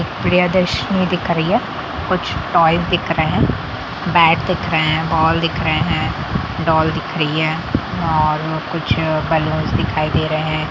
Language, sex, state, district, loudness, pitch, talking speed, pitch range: Hindi, female, Bihar, Darbhanga, -17 LUFS, 160 Hz, 140 wpm, 155-170 Hz